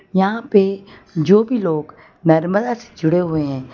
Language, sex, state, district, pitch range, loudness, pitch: Hindi, female, Gujarat, Valsad, 160-205 Hz, -17 LUFS, 190 Hz